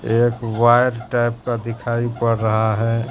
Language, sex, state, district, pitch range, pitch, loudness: Hindi, male, Bihar, Katihar, 115-120 Hz, 115 Hz, -19 LUFS